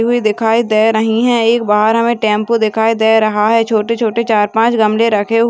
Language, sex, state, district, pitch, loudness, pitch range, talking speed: Hindi, female, Maharashtra, Pune, 225 Hz, -13 LUFS, 215-230 Hz, 195 wpm